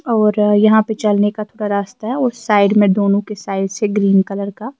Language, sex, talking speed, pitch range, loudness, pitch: Urdu, female, 235 wpm, 200-215 Hz, -16 LUFS, 210 Hz